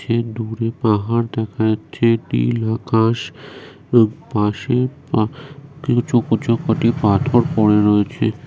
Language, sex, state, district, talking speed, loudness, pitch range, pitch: Bengali, male, West Bengal, North 24 Parganas, 100 wpm, -18 LUFS, 110-120 Hz, 115 Hz